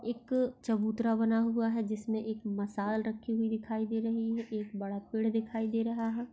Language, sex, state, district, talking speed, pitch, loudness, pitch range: Hindi, female, Maharashtra, Pune, 210 wpm, 225 Hz, -33 LUFS, 220-230 Hz